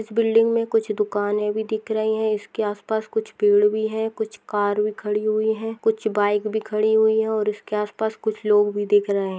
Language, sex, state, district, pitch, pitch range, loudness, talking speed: Hindi, female, Maharashtra, Dhule, 215 Hz, 210-220 Hz, -22 LUFS, 245 wpm